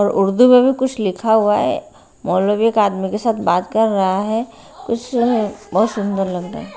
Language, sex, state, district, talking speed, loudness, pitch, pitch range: Hindi, female, Haryana, Rohtak, 195 wpm, -17 LUFS, 210 Hz, 195-230 Hz